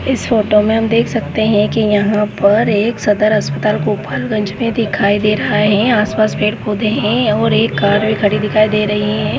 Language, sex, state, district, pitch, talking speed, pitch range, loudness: Hindi, female, Goa, North and South Goa, 210 Hz, 200 wpm, 210-220 Hz, -14 LUFS